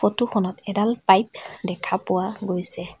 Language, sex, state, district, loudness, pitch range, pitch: Assamese, female, Assam, Sonitpur, -21 LUFS, 185-215 Hz, 200 Hz